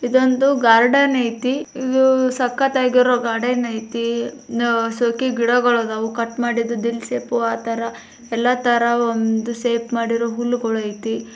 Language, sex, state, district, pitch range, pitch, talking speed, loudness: Kannada, female, Karnataka, Bijapur, 230-250 Hz, 235 Hz, 120 wpm, -19 LUFS